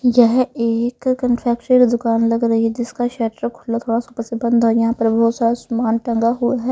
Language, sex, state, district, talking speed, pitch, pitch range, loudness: Hindi, male, Punjab, Pathankot, 225 wpm, 235 Hz, 230-240 Hz, -18 LUFS